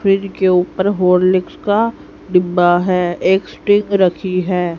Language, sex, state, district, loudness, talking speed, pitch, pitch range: Hindi, female, Haryana, Jhajjar, -15 LUFS, 140 wpm, 185 Hz, 180-195 Hz